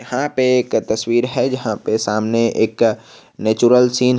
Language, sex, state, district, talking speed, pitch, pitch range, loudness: Hindi, male, Jharkhand, Garhwa, 170 wpm, 120 Hz, 110-125 Hz, -17 LUFS